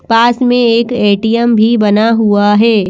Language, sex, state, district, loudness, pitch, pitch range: Hindi, female, Madhya Pradesh, Bhopal, -10 LUFS, 230 Hz, 210-235 Hz